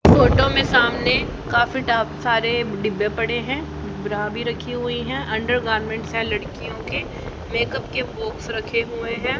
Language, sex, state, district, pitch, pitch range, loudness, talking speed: Hindi, female, Haryana, Charkhi Dadri, 230 Hz, 210-235 Hz, -21 LUFS, 155 wpm